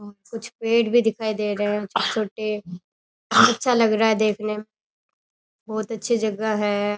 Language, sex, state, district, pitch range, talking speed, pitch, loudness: Rajasthani, female, Rajasthan, Churu, 210-225 Hz, 155 wpm, 215 Hz, -22 LUFS